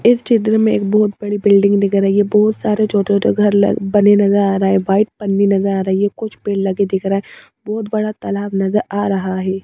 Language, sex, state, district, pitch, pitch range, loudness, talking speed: Hindi, female, Madhya Pradesh, Bhopal, 200 Hz, 195-210 Hz, -15 LUFS, 250 wpm